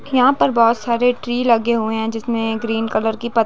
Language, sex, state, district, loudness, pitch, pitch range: Hindi, female, Chhattisgarh, Bilaspur, -18 LUFS, 230 Hz, 225-240 Hz